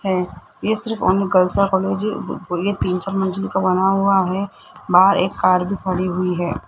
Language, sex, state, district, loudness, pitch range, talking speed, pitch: Hindi, male, Rajasthan, Jaipur, -19 LUFS, 185-195 Hz, 170 wpm, 190 Hz